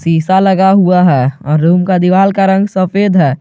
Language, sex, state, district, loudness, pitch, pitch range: Hindi, male, Jharkhand, Garhwa, -10 LUFS, 185 Hz, 165-195 Hz